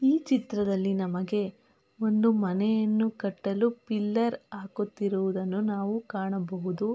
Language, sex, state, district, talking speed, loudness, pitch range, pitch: Kannada, female, Karnataka, Mysore, 85 wpm, -28 LUFS, 195-225 Hz, 210 Hz